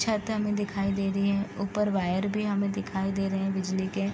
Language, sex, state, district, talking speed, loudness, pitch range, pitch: Hindi, female, Bihar, East Champaran, 245 wpm, -28 LUFS, 195-205 Hz, 200 Hz